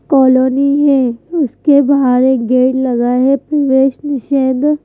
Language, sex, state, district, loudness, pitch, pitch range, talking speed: Hindi, female, Madhya Pradesh, Bhopal, -12 LUFS, 265 Hz, 255-285 Hz, 125 wpm